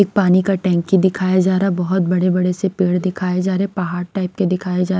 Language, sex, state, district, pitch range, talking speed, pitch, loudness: Hindi, female, Himachal Pradesh, Shimla, 180-190 Hz, 240 wpm, 185 Hz, -17 LUFS